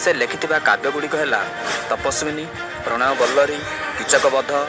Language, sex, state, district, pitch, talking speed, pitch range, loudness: Odia, male, Odisha, Malkangiri, 145 Hz, 90 wpm, 140-150 Hz, -19 LUFS